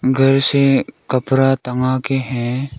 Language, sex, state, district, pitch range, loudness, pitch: Hindi, male, Arunachal Pradesh, Lower Dibang Valley, 130-135 Hz, -16 LUFS, 130 Hz